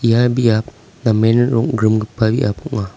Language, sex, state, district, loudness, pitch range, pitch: Garo, male, Meghalaya, South Garo Hills, -16 LUFS, 110-120 Hz, 115 Hz